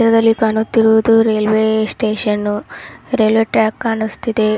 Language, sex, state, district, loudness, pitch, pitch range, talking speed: Kannada, female, Karnataka, Raichur, -15 LUFS, 220 Hz, 215-225 Hz, 90 wpm